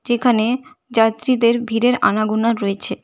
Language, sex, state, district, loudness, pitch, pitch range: Bengali, female, West Bengal, Cooch Behar, -18 LUFS, 235 Hz, 220-245 Hz